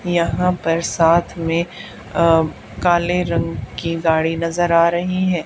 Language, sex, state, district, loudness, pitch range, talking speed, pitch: Hindi, female, Haryana, Charkhi Dadri, -18 LUFS, 165-175 Hz, 145 wpm, 170 Hz